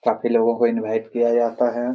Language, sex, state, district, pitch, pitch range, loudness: Hindi, male, Jharkhand, Jamtara, 120 Hz, 115-120 Hz, -20 LUFS